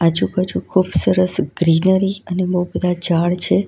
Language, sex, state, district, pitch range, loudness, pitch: Gujarati, female, Gujarat, Valsad, 175-185 Hz, -18 LUFS, 180 Hz